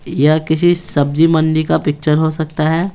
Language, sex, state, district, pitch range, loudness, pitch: Hindi, male, Bihar, Patna, 155-165 Hz, -14 LUFS, 160 Hz